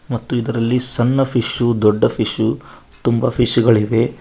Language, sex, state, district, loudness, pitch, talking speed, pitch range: Kannada, male, Karnataka, Koppal, -16 LUFS, 120 Hz, 130 wpm, 115-125 Hz